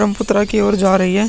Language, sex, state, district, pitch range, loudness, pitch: Hindi, male, Uttar Pradesh, Muzaffarnagar, 195-210 Hz, -15 LUFS, 205 Hz